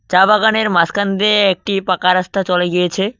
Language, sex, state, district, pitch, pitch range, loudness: Bengali, male, West Bengal, Cooch Behar, 195 Hz, 180-205 Hz, -14 LUFS